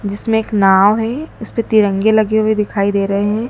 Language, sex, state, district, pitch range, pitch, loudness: Hindi, female, Madhya Pradesh, Dhar, 200-220 Hz, 215 Hz, -15 LUFS